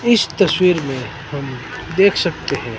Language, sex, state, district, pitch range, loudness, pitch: Hindi, male, Himachal Pradesh, Shimla, 140-195 Hz, -17 LUFS, 165 Hz